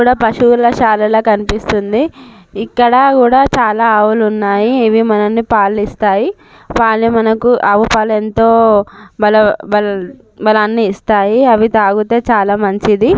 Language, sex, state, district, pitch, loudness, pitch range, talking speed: Telugu, female, Telangana, Karimnagar, 220 Hz, -11 LUFS, 210-230 Hz, 110 wpm